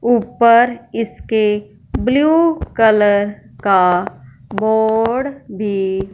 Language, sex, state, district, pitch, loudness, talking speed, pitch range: Hindi, male, Punjab, Fazilka, 220 Hz, -15 LUFS, 70 wpm, 200-240 Hz